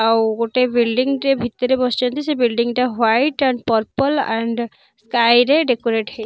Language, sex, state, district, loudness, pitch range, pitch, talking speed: Odia, female, Odisha, Nuapada, -18 LUFS, 230-260 Hz, 245 Hz, 175 wpm